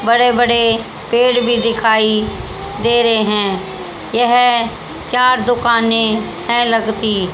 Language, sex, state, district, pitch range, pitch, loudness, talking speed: Hindi, female, Haryana, Rohtak, 220-240 Hz, 230 Hz, -14 LUFS, 105 wpm